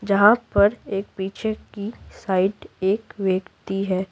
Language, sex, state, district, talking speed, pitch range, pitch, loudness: Hindi, female, Bihar, Patna, 130 wpm, 190-210 Hz, 200 Hz, -23 LUFS